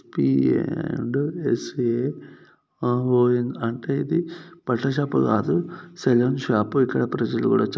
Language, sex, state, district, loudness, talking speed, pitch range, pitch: Telugu, male, Telangana, Nalgonda, -23 LUFS, 110 wpm, 120-160 Hz, 130 Hz